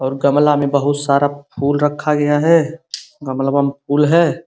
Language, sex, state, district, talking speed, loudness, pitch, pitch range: Hindi, male, Uttar Pradesh, Gorakhpur, 175 wpm, -16 LUFS, 145 Hz, 140-150 Hz